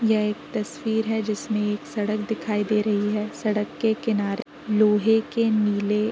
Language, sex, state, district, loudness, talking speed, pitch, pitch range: Hindi, female, Uttar Pradesh, Varanasi, -24 LUFS, 175 wpm, 215 Hz, 210-220 Hz